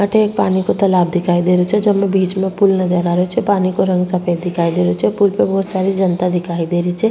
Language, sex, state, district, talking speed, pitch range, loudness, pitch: Rajasthani, female, Rajasthan, Churu, 270 wpm, 175-195 Hz, -15 LUFS, 185 Hz